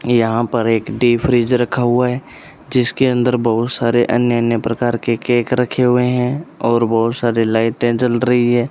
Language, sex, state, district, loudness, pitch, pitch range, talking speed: Hindi, male, Rajasthan, Bikaner, -16 LUFS, 120 Hz, 115-125 Hz, 185 wpm